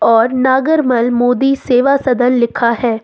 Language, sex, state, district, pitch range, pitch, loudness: Hindi, female, Jharkhand, Ranchi, 235-265 Hz, 245 Hz, -13 LUFS